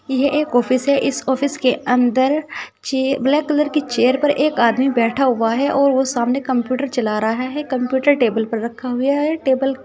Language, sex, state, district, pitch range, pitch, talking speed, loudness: Hindi, female, Uttar Pradesh, Saharanpur, 245-280 Hz, 265 Hz, 205 wpm, -18 LUFS